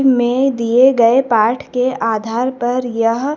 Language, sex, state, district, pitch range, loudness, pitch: Hindi, female, Madhya Pradesh, Dhar, 230-260 Hz, -15 LUFS, 245 Hz